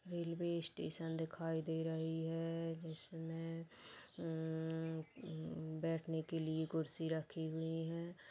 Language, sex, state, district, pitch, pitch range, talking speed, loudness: Hindi, female, Chhattisgarh, Kabirdham, 160 Hz, 160-165 Hz, 125 wpm, -43 LUFS